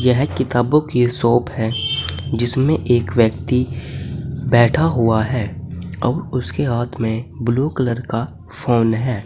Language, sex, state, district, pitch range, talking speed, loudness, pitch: Hindi, male, Uttar Pradesh, Saharanpur, 115-130 Hz, 130 wpm, -18 LUFS, 120 Hz